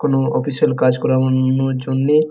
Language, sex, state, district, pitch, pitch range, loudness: Bengali, male, West Bengal, Jalpaiguri, 130 Hz, 130-135 Hz, -17 LUFS